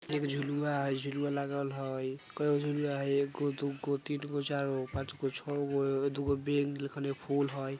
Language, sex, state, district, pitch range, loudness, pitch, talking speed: Bajjika, female, Bihar, Vaishali, 140-145 Hz, -34 LUFS, 140 Hz, 140 wpm